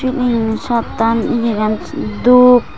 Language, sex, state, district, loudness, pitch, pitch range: Chakma, female, Tripura, West Tripura, -14 LUFS, 235 Hz, 220-250 Hz